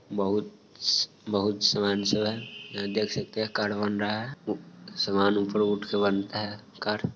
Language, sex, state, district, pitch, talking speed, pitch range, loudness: Hindi, male, Bihar, Sitamarhi, 105 Hz, 125 wpm, 100-105 Hz, -28 LUFS